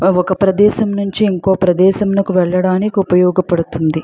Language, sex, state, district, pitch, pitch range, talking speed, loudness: Telugu, female, Andhra Pradesh, Chittoor, 190 Hz, 180-200 Hz, 120 wpm, -14 LUFS